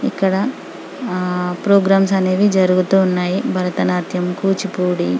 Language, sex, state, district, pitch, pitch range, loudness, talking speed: Telugu, female, Telangana, Karimnagar, 185 Hz, 180-195 Hz, -17 LUFS, 105 wpm